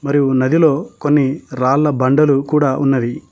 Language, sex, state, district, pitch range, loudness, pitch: Telugu, male, Telangana, Mahabubabad, 130-150 Hz, -15 LUFS, 140 Hz